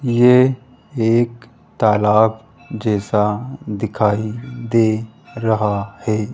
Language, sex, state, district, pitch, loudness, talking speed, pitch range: Hindi, male, Rajasthan, Jaipur, 110 Hz, -18 LUFS, 75 wpm, 105-120 Hz